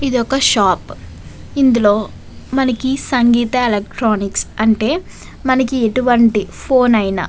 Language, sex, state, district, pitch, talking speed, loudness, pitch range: Telugu, female, Andhra Pradesh, Visakhapatnam, 240 Hz, 105 wpm, -15 LUFS, 215-260 Hz